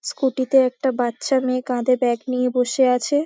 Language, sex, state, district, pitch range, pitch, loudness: Bengali, female, West Bengal, Paschim Medinipur, 250-265 Hz, 255 Hz, -20 LUFS